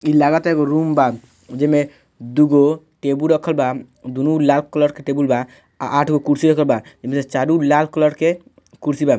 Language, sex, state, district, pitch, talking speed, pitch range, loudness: Bhojpuri, male, Bihar, Muzaffarpur, 145 Hz, 195 wpm, 140-155 Hz, -17 LUFS